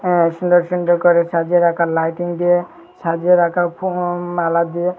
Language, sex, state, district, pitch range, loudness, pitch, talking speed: Bengali, male, Tripura, Unakoti, 170-175 Hz, -17 LUFS, 175 Hz, 155 wpm